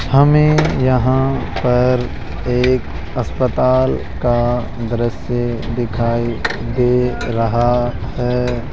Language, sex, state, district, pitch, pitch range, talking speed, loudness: Hindi, male, Rajasthan, Jaipur, 120 Hz, 115-125 Hz, 75 wpm, -17 LUFS